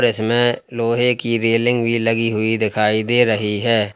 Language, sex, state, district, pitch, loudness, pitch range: Hindi, male, Uttar Pradesh, Lalitpur, 115 Hz, -17 LUFS, 110-120 Hz